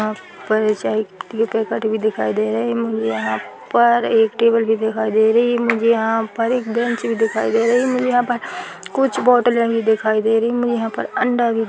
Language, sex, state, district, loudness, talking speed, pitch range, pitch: Hindi, female, Chhattisgarh, Bilaspur, -18 LUFS, 185 wpm, 215-235 Hz, 225 Hz